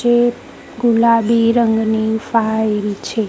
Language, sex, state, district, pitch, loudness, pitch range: Gujarati, female, Gujarat, Gandhinagar, 230 Hz, -15 LUFS, 220-235 Hz